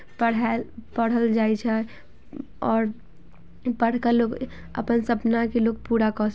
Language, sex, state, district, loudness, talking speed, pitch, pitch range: Maithili, female, Bihar, Samastipur, -24 LUFS, 140 wpm, 230 Hz, 225-235 Hz